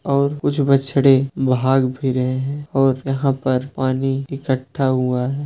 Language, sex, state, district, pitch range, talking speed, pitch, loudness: Hindi, male, Uttar Pradesh, Budaun, 130-140 Hz, 155 wpm, 135 Hz, -19 LUFS